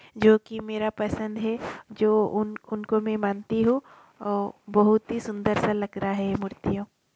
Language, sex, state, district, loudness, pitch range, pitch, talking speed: Hindi, female, Bihar, Kishanganj, -26 LUFS, 205-220 Hz, 215 Hz, 170 wpm